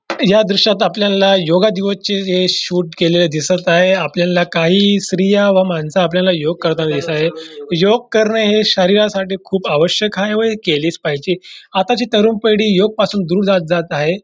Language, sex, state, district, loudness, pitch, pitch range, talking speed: Marathi, male, Maharashtra, Dhule, -14 LUFS, 190 Hz, 175-205 Hz, 160 wpm